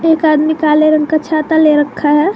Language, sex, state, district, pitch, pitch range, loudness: Hindi, female, Jharkhand, Garhwa, 310 Hz, 300-315 Hz, -12 LUFS